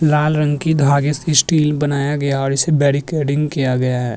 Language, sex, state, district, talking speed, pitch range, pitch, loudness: Hindi, male, Maharashtra, Chandrapur, 215 wpm, 140-150 Hz, 145 Hz, -16 LUFS